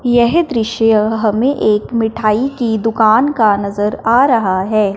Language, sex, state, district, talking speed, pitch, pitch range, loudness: Hindi, female, Punjab, Fazilka, 145 wpm, 225 Hz, 215-240 Hz, -14 LUFS